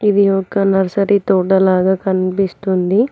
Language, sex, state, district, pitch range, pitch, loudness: Telugu, female, Telangana, Mahabubabad, 190-200 Hz, 195 Hz, -15 LUFS